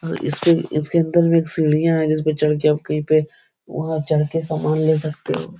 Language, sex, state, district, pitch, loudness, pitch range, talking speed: Hindi, male, Bihar, Jahanabad, 155 Hz, -19 LUFS, 155-165 Hz, 235 wpm